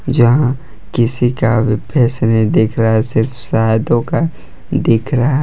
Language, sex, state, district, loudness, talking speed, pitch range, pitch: Hindi, male, Jharkhand, Palamu, -14 LUFS, 165 wpm, 110-135 Hz, 120 Hz